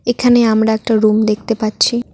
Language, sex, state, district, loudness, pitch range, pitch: Bengali, female, West Bengal, Cooch Behar, -14 LUFS, 215-240 Hz, 220 Hz